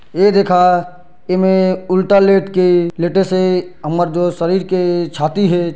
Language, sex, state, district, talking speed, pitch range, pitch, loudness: Chhattisgarhi, male, Chhattisgarh, Bilaspur, 145 wpm, 175-185 Hz, 180 Hz, -14 LUFS